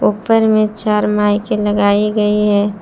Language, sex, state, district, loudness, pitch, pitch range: Hindi, female, Jharkhand, Palamu, -14 LUFS, 210 Hz, 205-215 Hz